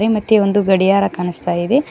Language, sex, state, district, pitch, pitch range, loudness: Kannada, female, Karnataka, Koppal, 200 Hz, 180-215 Hz, -15 LUFS